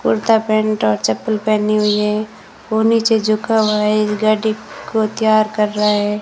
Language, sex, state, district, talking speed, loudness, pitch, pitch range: Hindi, female, Rajasthan, Bikaner, 175 wpm, -16 LUFS, 215 Hz, 210-220 Hz